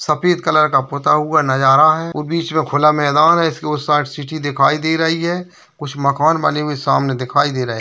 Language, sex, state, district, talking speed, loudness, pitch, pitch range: Hindi, male, Bihar, Bhagalpur, 245 wpm, -15 LUFS, 150 Hz, 145-160 Hz